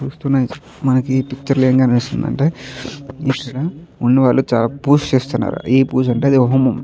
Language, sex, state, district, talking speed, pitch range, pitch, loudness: Telugu, male, Andhra Pradesh, Chittoor, 115 wpm, 130-140 Hz, 130 Hz, -16 LUFS